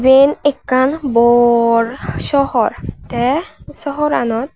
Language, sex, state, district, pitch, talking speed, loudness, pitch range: Chakma, female, Tripura, West Tripura, 260 Hz, 80 wpm, -15 LUFS, 235-285 Hz